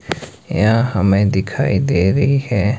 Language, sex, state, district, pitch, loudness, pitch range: Hindi, male, Himachal Pradesh, Shimla, 105 Hz, -16 LUFS, 100-125 Hz